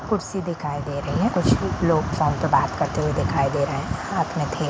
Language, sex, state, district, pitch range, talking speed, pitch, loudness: Hindi, female, Bihar, Darbhanga, 145-190 Hz, 240 wpm, 165 Hz, -23 LUFS